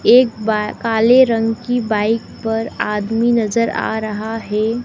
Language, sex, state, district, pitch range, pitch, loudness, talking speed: Hindi, female, Madhya Pradesh, Dhar, 215-230 Hz, 225 Hz, -17 LUFS, 150 wpm